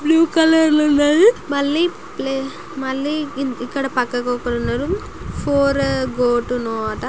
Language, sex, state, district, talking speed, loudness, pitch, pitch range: Telugu, female, Andhra Pradesh, Guntur, 100 wpm, -18 LUFS, 280 Hz, 250-305 Hz